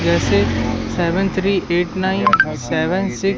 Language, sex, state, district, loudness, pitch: Hindi, male, Madhya Pradesh, Katni, -18 LUFS, 185 Hz